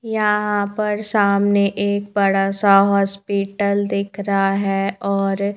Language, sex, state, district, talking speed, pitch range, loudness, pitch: Hindi, female, Madhya Pradesh, Bhopal, 110 wpm, 195-205 Hz, -18 LUFS, 200 Hz